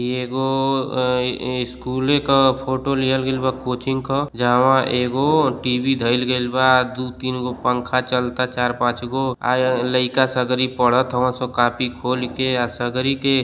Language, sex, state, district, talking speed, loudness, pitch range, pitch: Bhojpuri, male, Uttar Pradesh, Deoria, 185 wpm, -19 LUFS, 125-130 Hz, 125 Hz